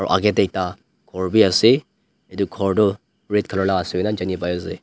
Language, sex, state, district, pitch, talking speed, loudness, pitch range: Nagamese, male, Nagaland, Dimapur, 95 Hz, 185 wpm, -20 LUFS, 90-100 Hz